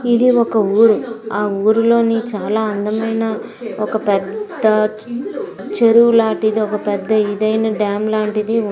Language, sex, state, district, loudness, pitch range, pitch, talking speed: Telugu, female, Andhra Pradesh, Visakhapatnam, -16 LUFS, 210-230 Hz, 220 Hz, 115 wpm